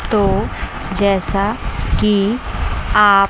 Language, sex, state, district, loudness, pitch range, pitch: Hindi, female, Chandigarh, Chandigarh, -17 LUFS, 195-210 Hz, 200 Hz